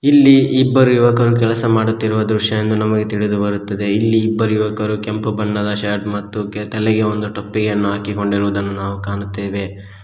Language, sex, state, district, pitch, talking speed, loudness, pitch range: Kannada, male, Karnataka, Koppal, 105 Hz, 135 wpm, -16 LUFS, 100-110 Hz